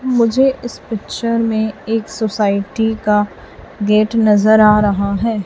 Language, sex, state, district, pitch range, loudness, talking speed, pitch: Hindi, female, Chhattisgarh, Raipur, 210-230 Hz, -15 LUFS, 130 wpm, 220 Hz